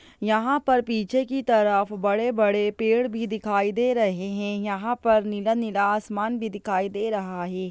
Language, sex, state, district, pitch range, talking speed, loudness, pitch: Hindi, female, Bihar, Jahanabad, 205-230 Hz, 165 wpm, -24 LUFS, 215 Hz